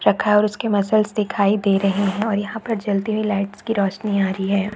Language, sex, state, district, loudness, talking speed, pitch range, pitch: Hindi, female, Chhattisgarh, Raigarh, -20 LUFS, 225 wpm, 200-215 Hz, 205 Hz